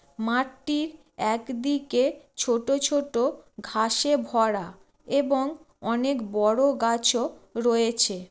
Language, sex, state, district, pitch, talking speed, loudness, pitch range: Bengali, female, West Bengal, Jalpaiguri, 245 Hz, 80 wpm, -25 LUFS, 225-280 Hz